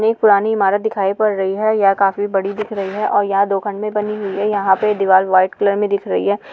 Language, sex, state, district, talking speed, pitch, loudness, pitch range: Hindi, female, Goa, North and South Goa, 255 wpm, 200 Hz, -16 LUFS, 195-210 Hz